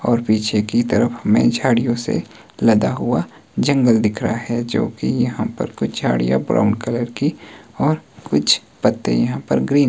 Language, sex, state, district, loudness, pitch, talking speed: Hindi, male, Himachal Pradesh, Shimla, -19 LUFS, 115 Hz, 175 wpm